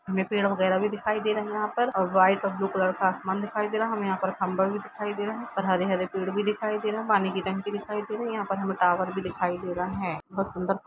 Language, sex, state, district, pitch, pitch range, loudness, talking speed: Hindi, female, Uttar Pradesh, Jalaun, 195 Hz, 190-210 Hz, -27 LUFS, 310 wpm